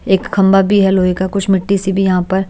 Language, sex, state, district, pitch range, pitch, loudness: Hindi, female, Haryana, Jhajjar, 190-195 Hz, 195 Hz, -13 LUFS